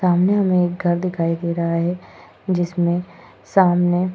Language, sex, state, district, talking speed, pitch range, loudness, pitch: Hindi, female, Goa, North and South Goa, 160 wpm, 170-180 Hz, -19 LUFS, 175 Hz